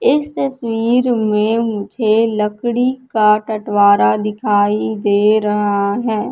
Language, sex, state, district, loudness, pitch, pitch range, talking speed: Hindi, female, Madhya Pradesh, Katni, -15 LUFS, 215 Hz, 205-230 Hz, 105 wpm